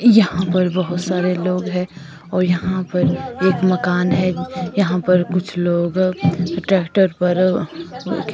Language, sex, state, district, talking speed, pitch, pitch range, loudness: Hindi, female, Himachal Pradesh, Shimla, 130 wpm, 180 Hz, 175-185 Hz, -18 LUFS